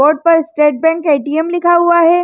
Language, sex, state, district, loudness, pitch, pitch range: Hindi, female, Chhattisgarh, Rajnandgaon, -12 LUFS, 325 Hz, 300-345 Hz